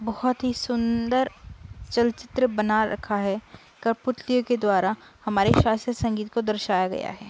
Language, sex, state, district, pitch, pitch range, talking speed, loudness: Hindi, female, Uttar Pradesh, Budaun, 230 Hz, 210-245 Hz, 140 wpm, -25 LUFS